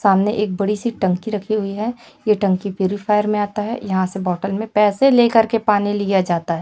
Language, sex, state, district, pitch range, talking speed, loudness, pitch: Hindi, female, Chhattisgarh, Raipur, 195-220 Hz, 235 wpm, -18 LUFS, 205 Hz